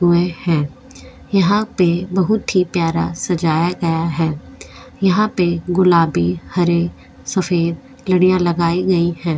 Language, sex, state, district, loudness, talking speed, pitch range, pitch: Hindi, female, Goa, North and South Goa, -17 LUFS, 120 wpm, 165-185 Hz, 175 Hz